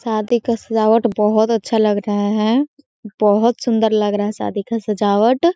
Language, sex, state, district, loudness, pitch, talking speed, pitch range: Hindi, female, Chhattisgarh, Korba, -17 LUFS, 220 Hz, 170 wpm, 210-235 Hz